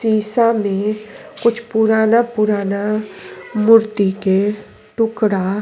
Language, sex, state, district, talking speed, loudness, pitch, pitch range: Bhojpuri, female, Uttar Pradesh, Deoria, 85 wpm, -16 LUFS, 215 Hz, 205-225 Hz